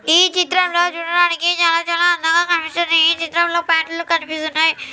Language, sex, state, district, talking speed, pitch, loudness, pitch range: Telugu, female, Andhra Pradesh, Anantapur, 135 wpm, 335 Hz, -16 LUFS, 330-350 Hz